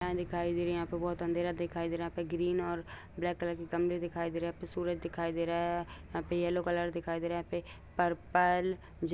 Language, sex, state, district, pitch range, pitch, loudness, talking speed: Hindi, male, Bihar, Araria, 170-175 Hz, 175 Hz, -35 LUFS, 255 wpm